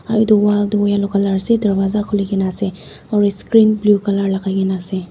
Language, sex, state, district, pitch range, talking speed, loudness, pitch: Nagamese, female, Nagaland, Dimapur, 195-210 Hz, 210 wpm, -16 LUFS, 200 Hz